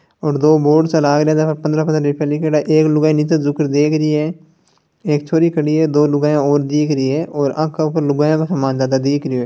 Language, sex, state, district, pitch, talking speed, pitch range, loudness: Marwari, male, Rajasthan, Nagaur, 150 Hz, 245 wpm, 145-155 Hz, -15 LUFS